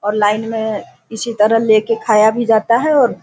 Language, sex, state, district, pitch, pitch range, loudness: Hindi, female, Bihar, Sitamarhi, 220 Hz, 215-230 Hz, -14 LUFS